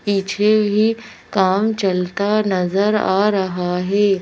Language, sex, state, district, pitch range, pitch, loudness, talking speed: Hindi, female, Madhya Pradesh, Bhopal, 190-210 Hz, 200 Hz, -18 LUFS, 115 wpm